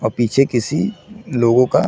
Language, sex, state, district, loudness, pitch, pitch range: Hindi, male, Chhattisgarh, Bilaspur, -17 LUFS, 125 Hz, 120-165 Hz